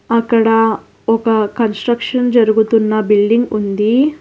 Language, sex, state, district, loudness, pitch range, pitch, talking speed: Telugu, female, Telangana, Hyderabad, -14 LUFS, 215-235 Hz, 225 Hz, 85 wpm